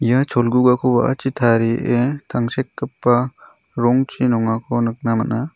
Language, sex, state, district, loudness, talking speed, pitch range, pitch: Garo, male, Meghalaya, South Garo Hills, -18 LUFS, 110 wpm, 115-130 Hz, 120 Hz